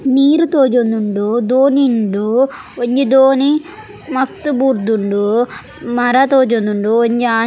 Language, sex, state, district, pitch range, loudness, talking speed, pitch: Tulu, female, Karnataka, Dakshina Kannada, 225-270 Hz, -14 LUFS, 95 wpm, 250 Hz